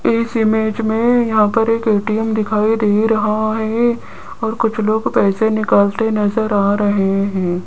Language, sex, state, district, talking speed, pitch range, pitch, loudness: Hindi, female, Rajasthan, Jaipur, 155 wpm, 210-225 Hz, 220 Hz, -16 LUFS